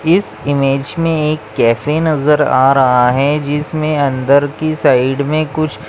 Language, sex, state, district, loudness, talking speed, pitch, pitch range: Hindi, male, Maharashtra, Chandrapur, -14 LUFS, 165 wpm, 145 Hz, 135-155 Hz